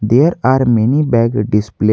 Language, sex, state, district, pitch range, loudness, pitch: English, male, Jharkhand, Garhwa, 105-130 Hz, -13 LUFS, 115 Hz